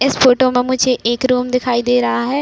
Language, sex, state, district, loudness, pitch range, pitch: Hindi, female, Uttar Pradesh, Budaun, -15 LUFS, 245-255 Hz, 250 Hz